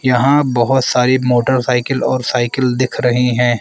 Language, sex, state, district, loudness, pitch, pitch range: Hindi, male, Arunachal Pradesh, Lower Dibang Valley, -14 LUFS, 125 Hz, 125-130 Hz